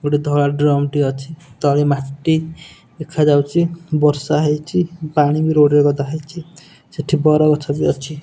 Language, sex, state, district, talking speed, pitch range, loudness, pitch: Odia, male, Odisha, Nuapada, 155 wpm, 145-155 Hz, -17 LUFS, 150 Hz